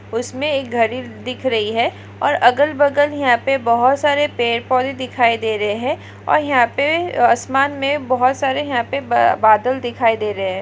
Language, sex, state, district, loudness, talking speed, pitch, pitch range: Hindi, female, Maharashtra, Aurangabad, -17 LUFS, 185 wpm, 255 Hz, 235-275 Hz